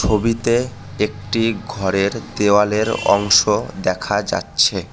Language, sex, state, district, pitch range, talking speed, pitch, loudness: Bengali, male, West Bengal, Cooch Behar, 100-115 Hz, 85 wpm, 105 Hz, -18 LUFS